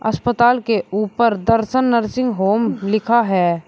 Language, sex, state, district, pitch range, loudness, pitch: Hindi, male, Uttar Pradesh, Shamli, 210-240 Hz, -17 LUFS, 225 Hz